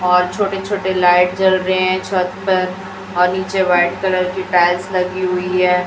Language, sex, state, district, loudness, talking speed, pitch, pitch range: Hindi, female, Chhattisgarh, Raipur, -16 LUFS, 185 wpm, 185 Hz, 180-190 Hz